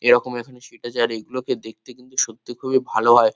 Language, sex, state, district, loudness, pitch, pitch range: Bengali, male, West Bengal, Kolkata, -22 LUFS, 120 Hz, 120-130 Hz